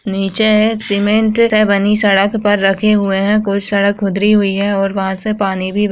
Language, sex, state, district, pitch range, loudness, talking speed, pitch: Hindi, female, Uttar Pradesh, Ghazipur, 195-215 Hz, -13 LUFS, 225 wpm, 205 Hz